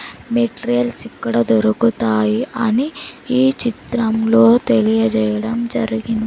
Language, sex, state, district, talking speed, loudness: Telugu, female, Andhra Pradesh, Sri Satya Sai, 75 wpm, -17 LUFS